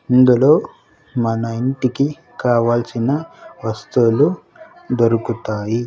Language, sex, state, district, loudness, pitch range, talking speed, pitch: Telugu, male, Andhra Pradesh, Sri Satya Sai, -18 LUFS, 115-135 Hz, 60 wpm, 120 Hz